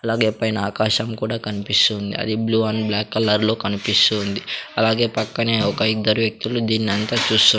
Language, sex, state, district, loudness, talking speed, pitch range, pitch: Telugu, male, Andhra Pradesh, Sri Satya Sai, -19 LUFS, 150 wpm, 105-110 Hz, 110 Hz